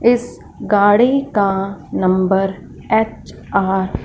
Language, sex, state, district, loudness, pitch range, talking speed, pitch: Hindi, female, Punjab, Fazilka, -16 LUFS, 190-220 Hz, 90 wpm, 200 Hz